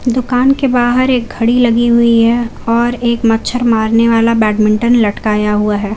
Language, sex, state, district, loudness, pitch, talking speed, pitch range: Hindi, female, Jharkhand, Garhwa, -12 LUFS, 235 Hz, 170 wpm, 220-240 Hz